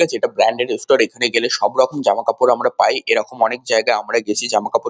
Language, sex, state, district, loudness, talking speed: Bengali, male, West Bengal, Kolkata, -17 LUFS, 195 wpm